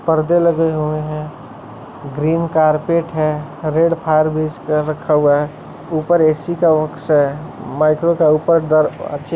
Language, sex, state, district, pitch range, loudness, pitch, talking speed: Hindi, male, Uttar Pradesh, Etah, 150-165 Hz, -16 LUFS, 155 Hz, 140 wpm